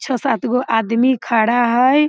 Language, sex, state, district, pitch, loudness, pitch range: Maithili, female, Bihar, Samastipur, 250 Hz, -16 LUFS, 230-260 Hz